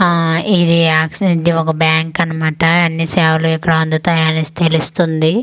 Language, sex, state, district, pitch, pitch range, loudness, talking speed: Telugu, female, Andhra Pradesh, Manyam, 165 Hz, 160-170 Hz, -14 LUFS, 135 wpm